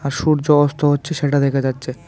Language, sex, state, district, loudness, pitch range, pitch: Bengali, male, Tripura, West Tripura, -17 LUFS, 140-150 Hz, 145 Hz